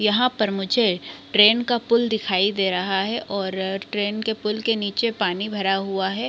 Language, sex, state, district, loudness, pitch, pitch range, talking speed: Hindi, female, Chhattisgarh, Bilaspur, -21 LUFS, 205 Hz, 195-225 Hz, 190 wpm